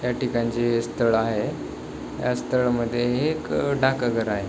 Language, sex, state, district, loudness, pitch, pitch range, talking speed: Marathi, male, Maharashtra, Chandrapur, -24 LUFS, 120 Hz, 110-125 Hz, 160 wpm